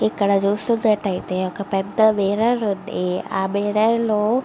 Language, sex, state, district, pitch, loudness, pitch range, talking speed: Telugu, female, Andhra Pradesh, Visakhapatnam, 205 Hz, -20 LUFS, 195-220 Hz, 135 wpm